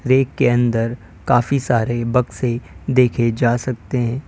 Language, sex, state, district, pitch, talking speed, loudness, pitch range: Hindi, male, Uttar Pradesh, Lalitpur, 120 Hz, 140 wpm, -18 LUFS, 115-125 Hz